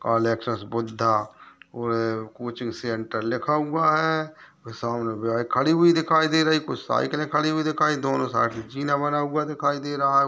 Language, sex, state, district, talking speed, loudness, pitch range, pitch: Hindi, male, Uttar Pradesh, Gorakhpur, 205 wpm, -24 LUFS, 115-155 Hz, 140 Hz